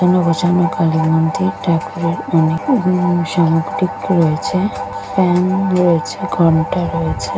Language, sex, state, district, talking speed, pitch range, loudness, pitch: Bengali, female, West Bengal, Kolkata, 100 wpm, 160-180 Hz, -16 LUFS, 165 Hz